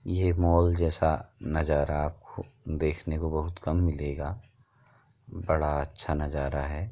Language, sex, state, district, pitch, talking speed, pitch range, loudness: Hindi, male, Uttar Pradesh, Muzaffarnagar, 80 Hz, 120 wpm, 75-90 Hz, -29 LUFS